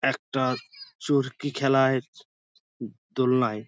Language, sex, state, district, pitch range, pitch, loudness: Bengali, male, West Bengal, Dakshin Dinajpur, 125-135 Hz, 130 Hz, -26 LUFS